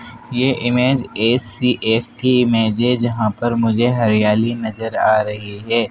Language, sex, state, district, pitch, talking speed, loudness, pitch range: Hindi, male, Madhya Pradesh, Dhar, 115 Hz, 140 wpm, -17 LUFS, 110-125 Hz